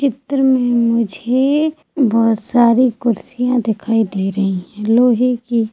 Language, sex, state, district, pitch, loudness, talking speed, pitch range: Hindi, female, Chhattisgarh, Sukma, 235 Hz, -16 LUFS, 125 wpm, 220-255 Hz